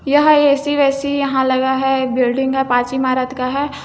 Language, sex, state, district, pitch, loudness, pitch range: Hindi, female, Chhattisgarh, Bilaspur, 265 Hz, -16 LUFS, 260-280 Hz